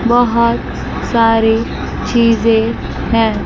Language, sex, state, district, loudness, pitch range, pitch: Hindi, female, Chandigarh, Chandigarh, -14 LUFS, 225-235 Hz, 230 Hz